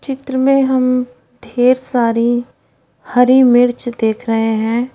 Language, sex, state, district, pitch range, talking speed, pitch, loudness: Hindi, female, Odisha, Khordha, 235-260 Hz, 120 wpm, 245 Hz, -14 LUFS